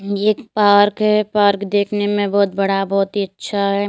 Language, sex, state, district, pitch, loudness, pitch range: Hindi, female, Uttar Pradesh, Lalitpur, 205 Hz, -17 LUFS, 200-210 Hz